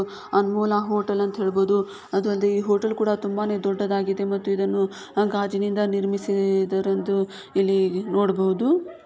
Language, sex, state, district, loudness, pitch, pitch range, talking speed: Kannada, female, Karnataka, Shimoga, -23 LUFS, 200 Hz, 195-205 Hz, 125 wpm